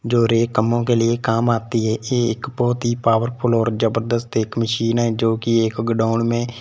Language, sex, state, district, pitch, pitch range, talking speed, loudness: Hindi, male, Punjab, Fazilka, 115 Hz, 115-120 Hz, 210 wpm, -19 LUFS